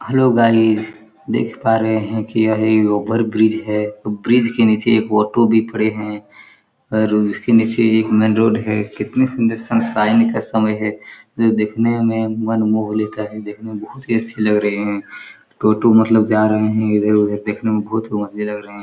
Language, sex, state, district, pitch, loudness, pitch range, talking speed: Hindi, male, Chhattisgarh, Korba, 110 Hz, -17 LUFS, 105-115 Hz, 195 wpm